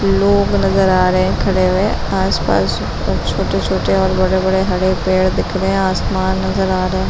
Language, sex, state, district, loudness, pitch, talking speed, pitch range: Hindi, female, Bihar, Madhepura, -15 LUFS, 190 Hz, 195 wpm, 185-195 Hz